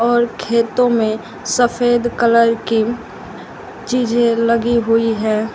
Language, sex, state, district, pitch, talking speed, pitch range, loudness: Hindi, female, Uttar Pradesh, Shamli, 230 Hz, 110 wpm, 225-240 Hz, -16 LUFS